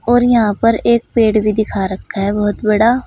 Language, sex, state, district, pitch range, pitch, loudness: Hindi, female, Uttar Pradesh, Saharanpur, 210-235 Hz, 220 Hz, -14 LUFS